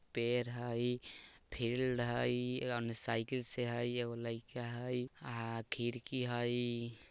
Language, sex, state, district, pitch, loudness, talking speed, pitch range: Bajjika, male, Bihar, Vaishali, 120 Hz, -39 LUFS, 120 wpm, 115-125 Hz